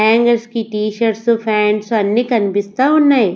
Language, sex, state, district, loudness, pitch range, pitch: Telugu, female, Andhra Pradesh, Sri Satya Sai, -15 LUFS, 210-235 Hz, 225 Hz